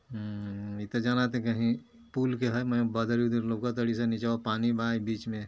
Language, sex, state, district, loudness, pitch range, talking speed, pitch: Bhojpuri, male, Uttar Pradesh, Ghazipur, -30 LUFS, 110-120 Hz, 230 wpm, 115 Hz